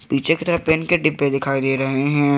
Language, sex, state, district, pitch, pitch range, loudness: Hindi, male, Jharkhand, Garhwa, 145 Hz, 135-160 Hz, -19 LUFS